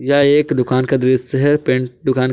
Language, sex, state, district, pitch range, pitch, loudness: Hindi, male, Jharkhand, Palamu, 130-140 Hz, 130 Hz, -15 LUFS